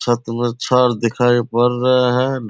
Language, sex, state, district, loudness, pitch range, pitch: Hindi, male, Bihar, Purnia, -16 LUFS, 120-125 Hz, 120 Hz